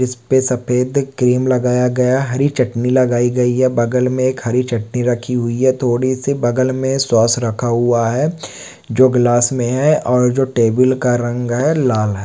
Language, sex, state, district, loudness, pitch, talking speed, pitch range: Hindi, male, West Bengal, Malda, -15 LUFS, 125 Hz, 185 wpm, 120-130 Hz